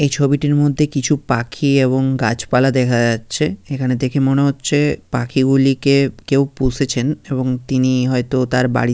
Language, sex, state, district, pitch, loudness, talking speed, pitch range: Bengali, male, West Bengal, Jhargram, 135 Hz, -17 LUFS, 150 wpm, 125-140 Hz